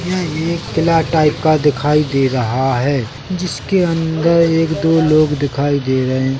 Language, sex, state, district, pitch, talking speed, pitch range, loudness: Hindi, male, Chhattisgarh, Bilaspur, 155 Hz, 160 wpm, 135-165 Hz, -15 LUFS